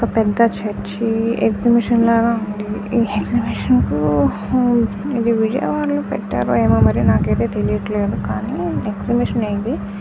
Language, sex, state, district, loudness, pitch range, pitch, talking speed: Telugu, female, Andhra Pradesh, Krishna, -18 LUFS, 200-235 Hz, 220 Hz, 100 wpm